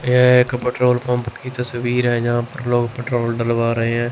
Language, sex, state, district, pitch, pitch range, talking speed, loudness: Hindi, male, Chandigarh, Chandigarh, 120 Hz, 120-125 Hz, 205 wpm, -19 LUFS